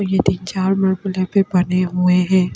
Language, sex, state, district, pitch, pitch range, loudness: Hindi, female, Delhi, New Delhi, 185 Hz, 180-190 Hz, -17 LUFS